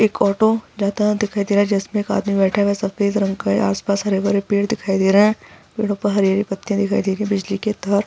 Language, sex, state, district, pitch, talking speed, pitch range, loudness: Hindi, female, Bihar, Araria, 200 Hz, 265 wpm, 195-210 Hz, -19 LUFS